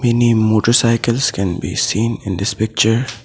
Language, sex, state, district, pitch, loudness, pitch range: English, male, Assam, Sonitpur, 115 Hz, -16 LUFS, 105-120 Hz